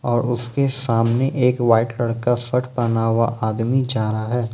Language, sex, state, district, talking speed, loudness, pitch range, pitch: Hindi, male, Jharkhand, Ranchi, 170 wpm, -20 LUFS, 115-125 Hz, 120 Hz